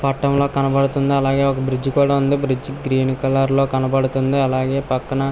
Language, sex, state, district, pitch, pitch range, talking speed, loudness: Telugu, male, Andhra Pradesh, Visakhapatnam, 135 Hz, 135-140 Hz, 135 wpm, -18 LUFS